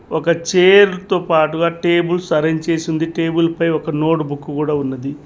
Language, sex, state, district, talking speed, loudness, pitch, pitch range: Telugu, male, Telangana, Mahabubabad, 170 wpm, -16 LUFS, 165 Hz, 155-170 Hz